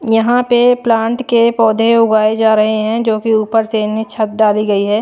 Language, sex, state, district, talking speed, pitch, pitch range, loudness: Hindi, female, Maharashtra, Washim, 215 wpm, 225 Hz, 215-230 Hz, -13 LUFS